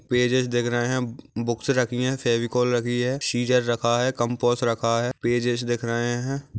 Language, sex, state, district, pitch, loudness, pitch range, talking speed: Hindi, male, Maharashtra, Aurangabad, 120 Hz, -24 LUFS, 120-125 Hz, 180 wpm